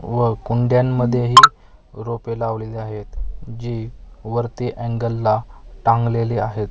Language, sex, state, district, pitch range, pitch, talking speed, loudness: Marathi, male, Maharashtra, Mumbai Suburban, 110-120 Hz, 115 Hz, 100 wpm, -18 LUFS